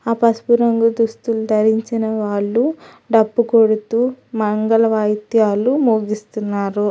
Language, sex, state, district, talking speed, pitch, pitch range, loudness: Telugu, female, Telangana, Hyderabad, 95 wpm, 225 Hz, 215-230 Hz, -17 LUFS